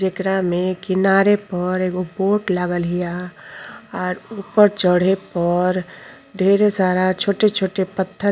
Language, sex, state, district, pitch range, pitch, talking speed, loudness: Bhojpuri, female, Uttar Pradesh, Gorakhpur, 180-195 Hz, 185 Hz, 125 wpm, -19 LUFS